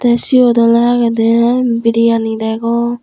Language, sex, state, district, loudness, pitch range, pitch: Chakma, female, Tripura, Unakoti, -12 LUFS, 230-240 Hz, 235 Hz